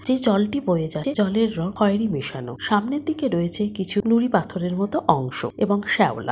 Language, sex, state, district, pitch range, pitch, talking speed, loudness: Bengali, female, West Bengal, Paschim Medinipur, 170-225 Hz, 205 Hz, 190 wpm, -22 LUFS